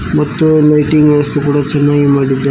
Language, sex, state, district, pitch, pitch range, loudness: Kannada, male, Karnataka, Koppal, 145 Hz, 145-150 Hz, -11 LUFS